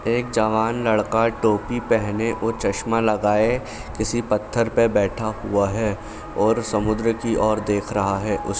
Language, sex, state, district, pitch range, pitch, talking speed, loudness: Hindi, male, Bihar, Saran, 105-115 Hz, 110 Hz, 160 wpm, -21 LUFS